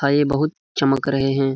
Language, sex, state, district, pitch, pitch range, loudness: Hindi, male, Jharkhand, Jamtara, 140 Hz, 135-145 Hz, -20 LUFS